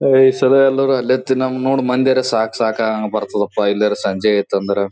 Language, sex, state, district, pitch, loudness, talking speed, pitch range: Kannada, male, Karnataka, Gulbarga, 120 Hz, -16 LUFS, 195 wpm, 105-130 Hz